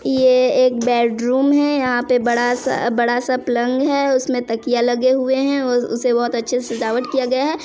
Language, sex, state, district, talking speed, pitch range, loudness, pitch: Hindi, female, Chhattisgarh, Sarguja, 205 wpm, 240-265 Hz, -17 LUFS, 250 Hz